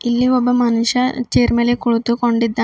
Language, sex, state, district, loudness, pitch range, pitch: Kannada, female, Karnataka, Bidar, -16 LUFS, 235-245 Hz, 240 Hz